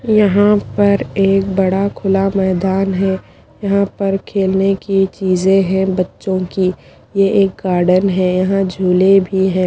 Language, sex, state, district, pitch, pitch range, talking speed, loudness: Hindi, female, Haryana, Charkhi Dadri, 195 Hz, 190-195 Hz, 145 wpm, -15 LUFS